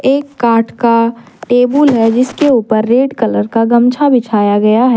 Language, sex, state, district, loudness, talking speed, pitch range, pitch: Hindi, female, Jharkhand, Deoghar, -11 LUFS, 170 wpm, 225-260 Hz, 235 Hz